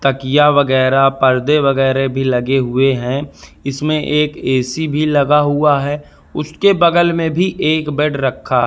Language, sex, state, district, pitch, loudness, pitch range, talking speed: Hindi, male, Madhya Pradesh, Katni, 145 Hz, -14 LUFS, 135-150 Hz, 160 wpm